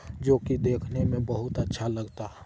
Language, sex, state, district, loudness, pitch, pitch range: Hindi, male, Bihar, Araria, -28 LUFS, 120 Hz, 110-125 Hz